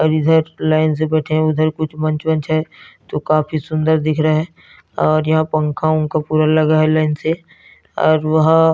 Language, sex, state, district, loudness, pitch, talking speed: Hindi, male, Chhattisgarh, Narayanpur, -16 LUFS, 155 Hz, 200 wpm